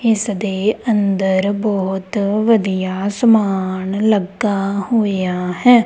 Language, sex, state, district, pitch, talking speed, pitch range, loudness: Punjabi, female, Punjab, Kapurthala, 200 Hz, 100 wpm, 190-220 Hz, -17 LUFS